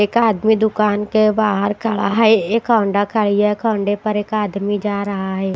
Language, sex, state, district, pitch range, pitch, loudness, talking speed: Hindi, female, Bihar, West Champaran, 205-220 Hz, 210 Hz, -17 LUFS, 195 wpm